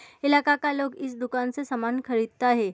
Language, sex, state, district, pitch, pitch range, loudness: Hindi, female, Uttar Pradesh, Muzaffarnagar, 255 Hz, 245-285 Hz, -26 LUFS